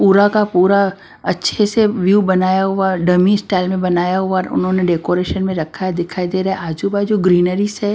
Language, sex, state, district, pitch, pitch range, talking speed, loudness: Hindi, female, Maharashtra, Washim, 185 Hz, 180-200 Hz, 195 wpm, -16 LUFS